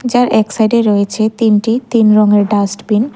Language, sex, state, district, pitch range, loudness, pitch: Bengali, female, Tripura, West Tripura, 210-230 Hz, -12 LUFS, 215 Hz